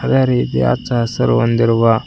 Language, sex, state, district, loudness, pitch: Kannada, male, Karnataka, Koppal, -15 LUFS, 115 Hz